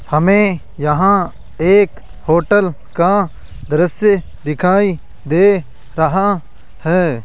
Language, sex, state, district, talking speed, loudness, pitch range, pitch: Hindi, male, Rajasthan, Jaipur, 85 wpm, -15 LUFS, 150-195 Hz, 175 Hz